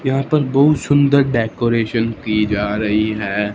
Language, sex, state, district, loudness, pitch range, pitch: Hindi, male, Punjab, Fazilka, -17 LUFS, 105-135 Hz, 115 Hz